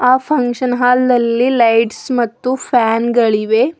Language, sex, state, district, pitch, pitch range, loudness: Kannada, female, Karnataka, Bidar, 245 Hz, 230-255 Hz, -14 LUFS